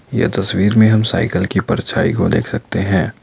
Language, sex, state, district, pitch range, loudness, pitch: Hindi, male, Assam, Kamrup Metropolitan, 100-115 Hz, -16 LUFS, 110 Hz